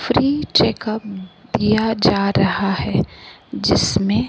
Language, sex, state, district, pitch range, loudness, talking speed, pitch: Hindi, female, Maharashtra, Gondia, 200-225 Hz, -18 LUFS, 100 wpm, 215 Hz